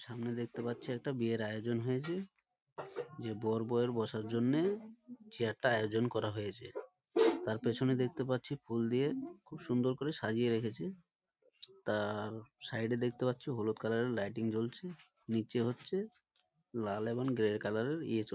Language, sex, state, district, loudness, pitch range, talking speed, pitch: Bengali, male, West Bengal, Malda, -37 LUFS, 110-145 Hz, 150 wpm, 120 Hz